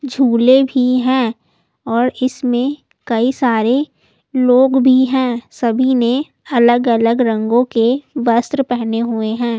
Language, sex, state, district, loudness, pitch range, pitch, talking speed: Hindi, female, Delhi, New Delhi, -15 LUFS, 235-260 Hz, 245 Hz, 120 wpm